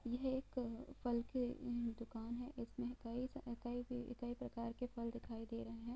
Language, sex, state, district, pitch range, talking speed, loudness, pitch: Hindi, female, Bihar, East Champaran, 235-250 Hz, 210 wpm, -46 LUFS, 240 Hz